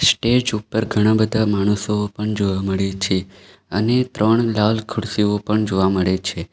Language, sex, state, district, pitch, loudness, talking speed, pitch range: Gujarati, male, Gujarat, Valsad, 105 Hz, -19 LUFS, 155 wpm, 95-110 Hz